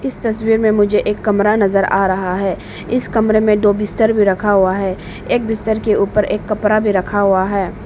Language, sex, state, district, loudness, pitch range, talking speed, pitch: Hindi, female, Arunachal Pradesh, Papum Pare, -15 LUFS, 195-215 Hz, 220 wpm, 210 Hz